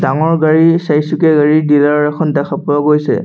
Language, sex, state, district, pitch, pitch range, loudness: Assamese, male, Assam, Sonitpur, 150 Hz, 150-160 Hz, -12 LUFS